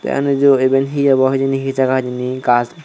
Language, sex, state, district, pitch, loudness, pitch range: Chakma, male, Tripura, Dhalai, 135 Hz, -15 LUFS, 130-140 Hz